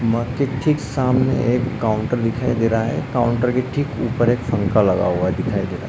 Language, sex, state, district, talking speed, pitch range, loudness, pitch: Hindi, male, Uttarakhand, Uttarkashi, 215 wpm, 110-125 Hz, -19 LUFS, 120 Hz